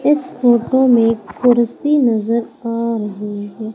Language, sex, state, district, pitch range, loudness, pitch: Hindi, female, Madhya Pradesh, Umaria, 225-250 Hz, -16 LUFS, 235 Hz